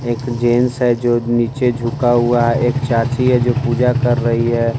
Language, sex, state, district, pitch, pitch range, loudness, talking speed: Hindi, male, Bihar, West Champaran, 120 Hz, 120-125 Hz, -16 LUFS, 200 wpm